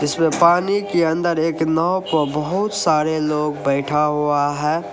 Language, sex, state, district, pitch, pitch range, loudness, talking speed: Hindi, male, Uttar Pradesh, Lalitpur, 160 Hz, 150-170 Hz, -18 LUFS, 145 wpm